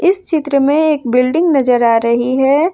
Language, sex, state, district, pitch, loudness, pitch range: Hindi, female, Jharkhand, Ranchi, 280 Hz, -13 LUFS, 250-315 Hz